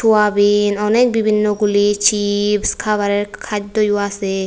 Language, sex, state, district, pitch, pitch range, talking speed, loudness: Bengali, female, Tripura, West Tripura, 205 Hz, 205-210 Hz, 105 wpm, -16 LUFS